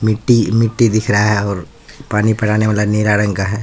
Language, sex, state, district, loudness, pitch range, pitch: Hindi, male, Bihar, Katihar, -15 LUFS, 105-110 Hz, 105 Hz